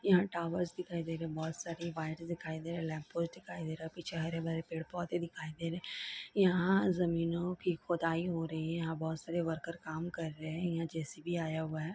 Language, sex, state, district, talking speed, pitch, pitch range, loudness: Hindi, female, Chhattisgarh, Bilaspur, 235 wpm, 165 Hz, 160-175 Hz, -37 LUFS